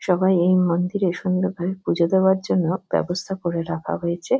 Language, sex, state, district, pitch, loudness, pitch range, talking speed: Bengali, female, West Bengal, Kolkata, 180 Hz, -21 LUFS, 170-190 Hz, 165 wpm